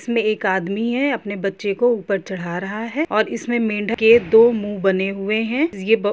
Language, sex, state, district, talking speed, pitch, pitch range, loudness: Hindi, female, Jharkhand, Sahebganj, 215 wpm, 215 Hz, 195-235 Hz, -19 LUFS